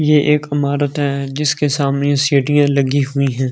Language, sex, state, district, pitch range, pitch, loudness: Hindi, male, Delhi, New Delhi, 140-145 Hz, 145 Hz, -16 LUFS